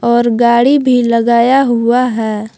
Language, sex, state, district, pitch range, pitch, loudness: Hindi, female, Jharkhand, Palamu, 235-250 Hz, 235 Hz, -11 LUFS